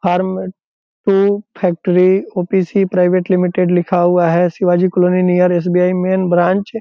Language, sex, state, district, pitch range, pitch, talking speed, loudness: Hindi, male, Bihar, Purnia, 180-190 Hz, 180 Hz, 130 wpm, -14 LUFS